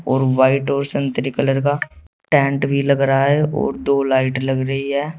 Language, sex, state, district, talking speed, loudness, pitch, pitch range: Hindi, male, Uttar Pradesh, Saharanpur, 195 wpm, -18 LUFS, 135 Hz, 135-140 Hz